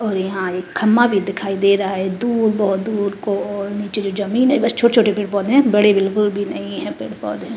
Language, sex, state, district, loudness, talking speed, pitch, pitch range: Hindi, female, Uttar Pradesh, Jalaun, -18 LUFS, 240 wpm, 205 Hz, 195-220 Hz